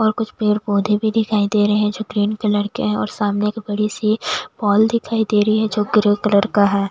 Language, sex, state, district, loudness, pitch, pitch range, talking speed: Hindi, female, Bihar, West Champaran, -18 LUFS, 210 Hz, 205-215 Hz, 245 wpm